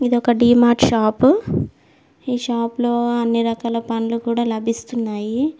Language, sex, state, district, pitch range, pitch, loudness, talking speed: Telugu, female, Telangana, Mahabubabad, 230-240 Hz, 235 Hz, -18 LUFS, 140 wpm